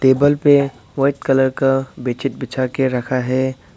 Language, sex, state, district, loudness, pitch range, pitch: Hindi, male, Arunachal Pradesh, Papum Pare, -18 LUFS, 130-140 Hz, 130 Hz